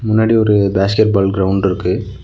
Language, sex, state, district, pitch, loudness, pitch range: Tamil, male, Tamil Nadu, Nilgiris, 100 Hz, -14 LUFS, 95-110 Hz